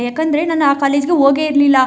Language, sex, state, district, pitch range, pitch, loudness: Kannada, female, Karnataka, Chamarajanagar, 275-310 Hz, 285 Hz, -14 LUFS